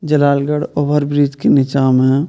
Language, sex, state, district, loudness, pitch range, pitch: Maithili, male, Bihar, Purnia, -14 LUFS, 135-150 Hz, 145 Hz